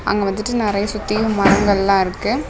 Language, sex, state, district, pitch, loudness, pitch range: Tamil, female, Tamil Nadu, Namakkal, 205 Hz, -17 LUFS, 200-210 Hz